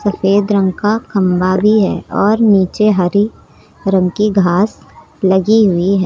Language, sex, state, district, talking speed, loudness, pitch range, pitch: Hindi, female, Uttar Pradesh, Lucknow, 150 wpm, -13 LUFS, 185-210 Hz, 195 Hz